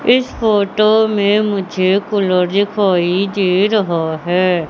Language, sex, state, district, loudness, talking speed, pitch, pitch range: Hindi, female, Madhya Pradesh, Katni, -15 LUFS, 115 wpm, 200 Hz, 180-210 Hz